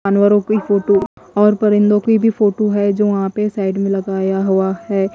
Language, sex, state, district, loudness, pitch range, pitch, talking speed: Hindi, female, Haryana, Jhajjar, -15 LUFS, 195-210 Hz, 200 Hz, 200 wpm